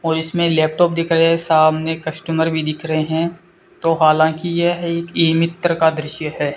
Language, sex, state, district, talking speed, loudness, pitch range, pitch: Hindi, male, Rajasthan, Bikaner, 190 wpm, -17 LUFS, 155-170 Hz, 160 Hz